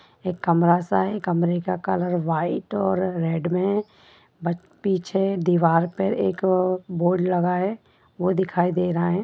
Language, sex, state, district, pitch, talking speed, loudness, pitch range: Hindi, female, Bihar, Sitamarhi, 180 Hz, 145 wpm, -23 LUFS, 175-190 Hz